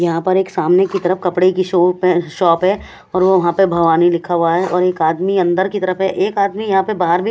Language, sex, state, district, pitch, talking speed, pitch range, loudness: Hindi, female, Odisha, Khordha, 185 Hz, 270 wpm, 175-190 Hz, -15 LUFS